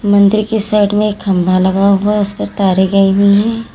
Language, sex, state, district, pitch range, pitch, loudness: Hindi, female, Uttar Pradesh, Lalitpur, 195-210 Hz, 200 Hz, -12 LUFS